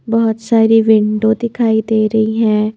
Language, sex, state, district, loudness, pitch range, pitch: Hindi, female, Madhya Pradesh, Bhopal, -13 LUFS, 220-225 Hz, 220 Hz